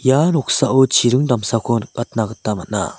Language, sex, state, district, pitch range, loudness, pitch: Garo, male, Meghalaya, South Garo Hills, 115-130 Hz, -17 LUFS, 125 Hz